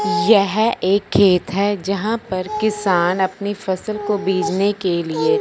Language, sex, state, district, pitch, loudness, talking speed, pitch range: Hindi, male, Punjab, Fazilka, 200 Hz, -18 LUFS, 145 wpm, 190-210 Hz